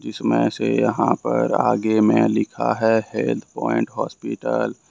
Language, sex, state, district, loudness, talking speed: Hindi, male, Jharkhand, Ranchi, -20 LUFS, 145 wpm